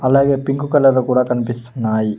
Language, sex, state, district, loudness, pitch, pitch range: Telugu, male, Telangana, Mahabubabad, -16 LUFS, 125 Hz, 120-135 Hz